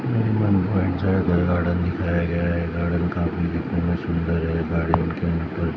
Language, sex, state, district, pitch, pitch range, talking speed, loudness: Hindi, male, Maharashtra, Mumbai Suburban, 85 Hz, 85-90 Hz, 145 wpm, -22 LUFS